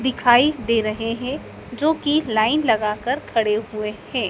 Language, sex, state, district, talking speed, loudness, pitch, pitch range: Hindi, male, Madhya Pradesh, Dhar, 155 wpm, -20 LUFS, 240 Hz, 220-280 Hz